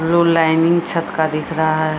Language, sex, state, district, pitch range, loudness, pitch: Maithili, female, Bihar, Samastipur, 155-170 Hz, -16 LUFS, 160 Hz